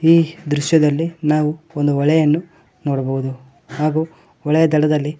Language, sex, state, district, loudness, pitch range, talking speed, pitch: Kannada, male, Karnataka, Koppal, -18 LUFS, 145-160 Hz, 105 wpm, 150 Hz